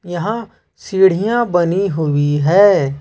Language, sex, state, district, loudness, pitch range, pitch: Hindi, male, Jharkhand, Ranchi, -15 LUFS, 160-200 Hz, 180 Hz